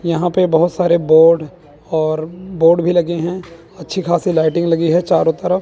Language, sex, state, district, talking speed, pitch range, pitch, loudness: Hindi, male, Chandigarh, Chandigarh, 180 wpm, 160-175 Hz, 170 Hz, -15 LUFS